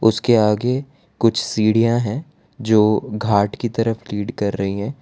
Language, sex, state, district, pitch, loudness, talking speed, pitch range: Hindi, male, Gujarat, Valsad, 115 Hz, -19 LUFS, 155 wpm, 105-120 Hz